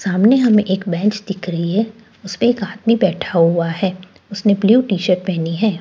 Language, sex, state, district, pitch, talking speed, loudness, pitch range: Hindi, female, Delhi, New Delhi, 195 Hz, 195 wpm, -17 LUFS, 180-220 Hz